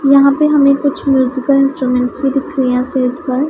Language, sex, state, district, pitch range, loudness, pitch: Hindi, female, Punjab, Pathankot, 260-280 Hz, -13 LUFS, 275 Hz